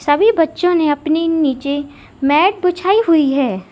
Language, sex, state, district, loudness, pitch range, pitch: Hindi, female, Uttar Pradesh, Lalitpur, -15 LUFS, 285-355 Hz, 310 Hz